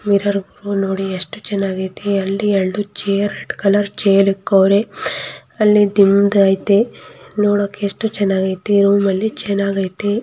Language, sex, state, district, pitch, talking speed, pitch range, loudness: Kannada, female, Karnataka, Mysore, 200 Hz, 140 wpm, 195-205 Hz, -16 LUFS